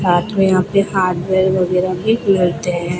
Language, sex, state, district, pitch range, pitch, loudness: Hindi, female, Rajasthan, Bikaner, 180-195 Hz, 185 Hz, -16 LUFS